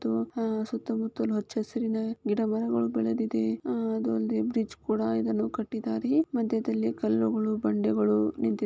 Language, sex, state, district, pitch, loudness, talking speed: Kannada, female, Karnataka, Shimoga, 115 Hz, -29 LUFS, 140 wpm